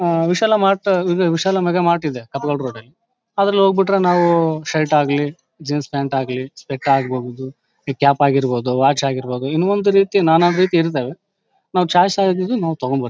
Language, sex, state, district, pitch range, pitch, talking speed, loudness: Kannada, male, Karnataka, Bellary, 135-185 Hz, 160 Hz, 175 wpm, -17 LUFS